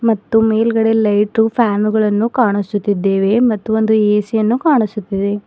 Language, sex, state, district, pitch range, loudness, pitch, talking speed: Kannada, female, Karnataka, Bidar, 205-225 Hz, -15 LUFS, 220 Hz, 110 wpm